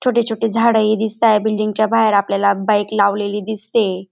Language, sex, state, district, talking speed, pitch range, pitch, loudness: Marathi, female, Maharashtra, Dhule, 175 wpm, 205-225 Hz, 215 Hz, -16 LUFS